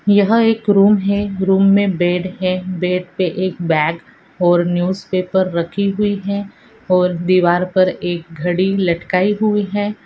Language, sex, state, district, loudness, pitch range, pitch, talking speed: Hindi, female, Andhra Pradesh, Anantapur, -16 LUFS, 180-200 Hz, 185 Hz, 150 wpm